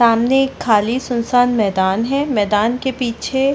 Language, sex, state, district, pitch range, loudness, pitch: Hindi, female, Chhattisgarh, Sarguja, 220-265 Hz, -17 LUFS, 240 Hz